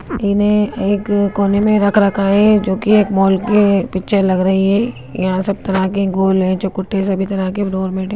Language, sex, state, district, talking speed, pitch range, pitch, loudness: Hindi, female, Uttarakhand, Uttarkashi, 215 wpm, 190-205 Hz, 195 Hz, -15 LUFS